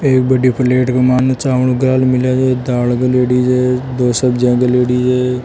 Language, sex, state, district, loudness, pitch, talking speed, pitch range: Marwari, male, Rajasthan, Churu, -13 LUFS, 125 Hz, 185 wpm, 125-130 Hz